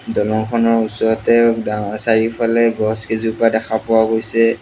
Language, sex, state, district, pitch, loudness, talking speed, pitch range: Assamese, male, Assam, Sonitpur, 110 Hz, -16 LUFS, 115 wpm, 110-115 Hz